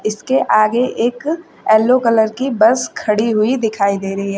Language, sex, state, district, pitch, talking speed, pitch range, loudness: Hindi, female, Uttar Pradesh, Shamli, 220 Hz, 180 wpm, 210-245 Hz, -15 LUFS